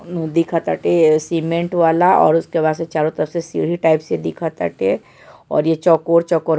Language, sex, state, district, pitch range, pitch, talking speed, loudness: Bhojpuri, male, Bihar, Saran, 160-170 Hz, 165 Hz, 175 wpm, -17 LUFS